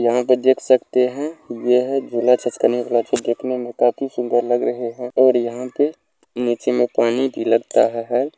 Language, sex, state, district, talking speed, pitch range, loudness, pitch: Maithili, male, Bihar, Supaul, 180 wpm, 120-130 Hz, -19 LUFS, 125 Hz